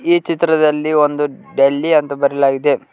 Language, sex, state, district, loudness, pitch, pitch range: Kannada, male, Karnataka, Koppal, -15 LUFS, 150 Hz, 140-160 Hz